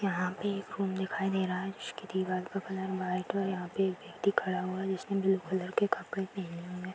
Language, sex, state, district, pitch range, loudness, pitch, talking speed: Hindi, female, Bihar, Bhagalpur, 185-195 Hz, -33 LUFS, 190 Hz, 260 wpm